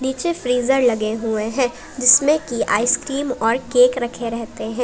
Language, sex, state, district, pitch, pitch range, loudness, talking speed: Hindi, female, Jharkhand, Palamu, 250 Hz, 230-265 Hz, -18 LUFS, 160 wpm